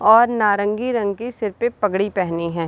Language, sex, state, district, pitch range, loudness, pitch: Hindi, female, Bihar, Sitamarhi, 195-235 Hz, -20 LUFS, 210 Hz